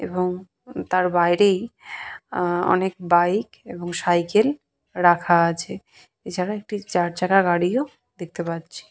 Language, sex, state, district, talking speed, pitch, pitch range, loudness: Bengali, female, West Bengal, Purulia, 110 wpm, 180 Hz, 175-200 Hz, -21 LUFS